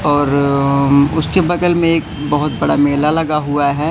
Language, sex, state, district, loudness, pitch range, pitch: Hindi, male, Madhya Pradesh, Katni, -14 LUFS, 140-160 Hz, 145 Hz